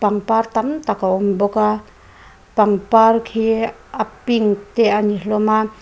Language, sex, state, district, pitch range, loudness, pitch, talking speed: Mizo, female, Mizoram, Aizawl, 205-225 Hz, -17 LUFS, 215 Hz, 165 wpm